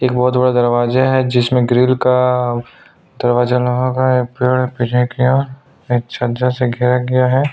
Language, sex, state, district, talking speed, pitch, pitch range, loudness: Hindi, male, Chhattisgarh, Sukma, 165 wpm, 125 Hz, 125-130 Hz, -15 LUFS